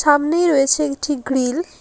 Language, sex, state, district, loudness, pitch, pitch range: Bengali, female, West Bengal, Alipurduar, -18 LUFS, 290 Hz, 275-310 Hz